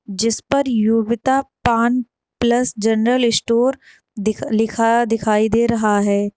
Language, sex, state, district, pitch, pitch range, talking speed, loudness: Hindi, female, Uttar Pradesh, Lalitpur, 230 Hz, 220-245 Hz, 120 wpm, -18 LUFS